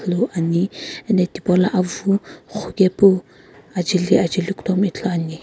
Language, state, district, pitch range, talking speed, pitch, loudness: Sumi, Nagaland, Kohima, 175-195 Hz, 120 wpm, 185 Hz, -19 LUFS